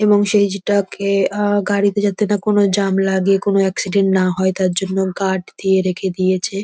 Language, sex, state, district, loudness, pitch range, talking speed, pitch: Bengali, female, West Bengal, North 24 Parganas, -17 LUFS, 190-205 Hz, 180 wpm, 195 Hz